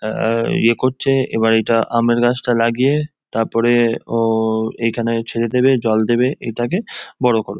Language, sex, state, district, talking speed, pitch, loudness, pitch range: Bengali, male, West Bengal, Jhargram, 150 wpm, 115 Hz, -17 LUFS, 115-125 Hz